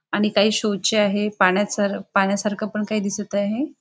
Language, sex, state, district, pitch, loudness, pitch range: Marathi, female, Maharashtra, Nagpur, 205 Hz, -21 LUFS, 200-210 Hz